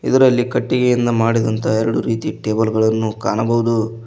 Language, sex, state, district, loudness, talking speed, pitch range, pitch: Kannada, male, Karnataka, Koppal, -17 LUFS, 120 wpm, 110-120 Hz, 115 Hz